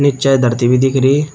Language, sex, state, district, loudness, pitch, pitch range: Hindi, male, Uttar Pradesh, Shamli, -13 LUFS, 135 Hz, 125-140 Hz